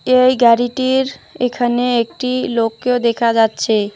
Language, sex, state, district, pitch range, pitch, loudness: Bengali, female, West Bengal, Alipurduar, 230-255 Hz, 245 Hz, -16 LUFS